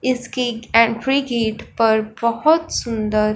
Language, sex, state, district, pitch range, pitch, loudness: Hindi, female, Punjab, Fazilka, 220-255 Hz, 230 Hz, -19 LUFS